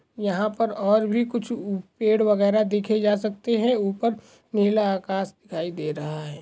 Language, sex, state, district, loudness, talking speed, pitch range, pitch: Hindi, male, Goa, North and South Goa, -24 LUFS, 170 wpm, 195-220 Hz, 210 Hz